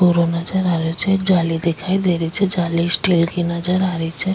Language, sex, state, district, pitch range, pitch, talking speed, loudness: Rajasthani, female, Rajasthan, Nagaur, 170-185 Hz, 175 Hz, 250 wpm, -18 LUFS